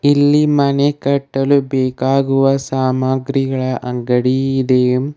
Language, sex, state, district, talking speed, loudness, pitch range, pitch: Kannada, male, Karnataka, Bidar, 80 wpm, -15 LUFS, 130-140 Hz, 135 Hz